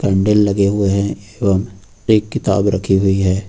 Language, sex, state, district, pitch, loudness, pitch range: Hindi, male, Uttar Pradesh, Lucknow, 100 Hz, -16 LUFS, 95-105 Hz